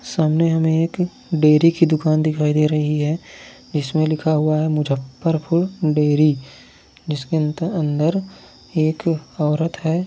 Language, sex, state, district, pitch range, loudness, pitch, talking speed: Hindi, male, Bihar, Sitamarhi, 150-165 Hz, -19 LUFS, 155 Hz, 135 wpm